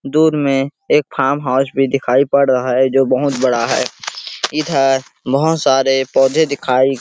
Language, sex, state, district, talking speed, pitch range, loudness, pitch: Hindi, male, Chhattisgarh, Sarguja, 170 wpm, 130-140 Hz, -15 LUFS, 135 Hz